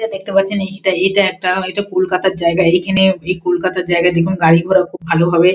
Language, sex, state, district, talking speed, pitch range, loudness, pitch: Bengali, female, West Bengal, Kolkata, 195 wpm, 175-190 Hz, -15 LUFS, 185 Hz